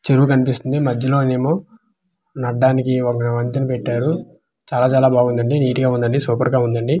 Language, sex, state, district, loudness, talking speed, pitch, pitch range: Telugu, male, Andhra Pradesh, Manyam, -18 LUFS, 130 wpm, 130 Hz, 125-140 Hz